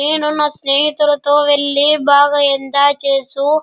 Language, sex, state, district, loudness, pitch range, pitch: Telugu, female, Andhra Pradesh, Anantapur, -13 LUFS, 280-295 Hz, 285 Hz